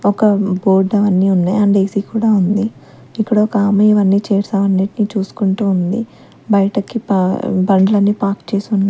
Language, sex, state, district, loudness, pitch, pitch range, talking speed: Telugu, female, Andhra Pradesh, Sri Satya Sai, -15 LUFS, 200 Hz, 195-210 Hz, 150 wpm